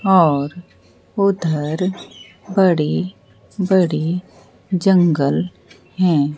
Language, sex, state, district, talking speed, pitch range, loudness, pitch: Hindi, female, Bihar, Katihar, 55 wpm, 150-185 Hz, -18 LUFS, 175 Hz